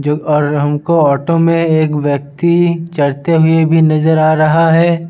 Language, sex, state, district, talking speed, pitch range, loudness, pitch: Hindi, male, Bihar, Sitamarhi, 165 wpm, 150-165 Hz, -12 LUFS, 160 Hz